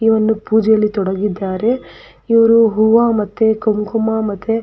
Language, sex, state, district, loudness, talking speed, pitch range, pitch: Kannada, female, Karnataka, Belgaum, -15 LUFS, 130 wpm, 210-225 Hz, 220 Hz